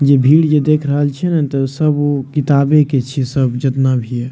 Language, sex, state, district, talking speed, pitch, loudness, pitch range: Maithili, male, Bihar, Madhepura, 235 wpm, 140 Hz, -14 LUFS, 135-150 Hz